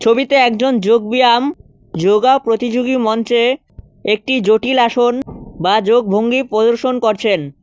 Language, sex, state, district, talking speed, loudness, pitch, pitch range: Bengali, male, West Bengal, Cooch Behar, 100 wpm, -14 LUFS, 235 Hz, 220-255 Hz